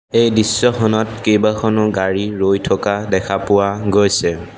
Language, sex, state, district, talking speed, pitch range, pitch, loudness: Assamese, male, Assam, Sonitpur, 120 wpm, 100-110 Hz, 105 Hz, -16 LUFS